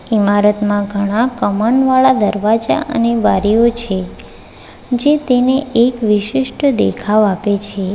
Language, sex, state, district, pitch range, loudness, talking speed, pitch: Gujarati, female, Gujarat, Valsad, 205-250 Hz, -14 LUFS, 105 wpm, 220 Hz